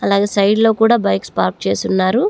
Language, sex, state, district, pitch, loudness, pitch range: Telugu, female, Andhra Pradesh, Chittoor, 205 Hz, -15 LUFS, 195-225 Hz